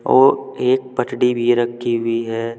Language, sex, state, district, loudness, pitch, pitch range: Hindi, male, Uttar Pradesh, Saharanpur, -18 LUFS, 120 Hz, 115-125 Hz